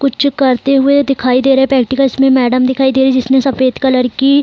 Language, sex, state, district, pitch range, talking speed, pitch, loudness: Hindi, female, Bihar, Saran, 260-275 Hz, 230 wpm, 265 Hz, -11 LUFS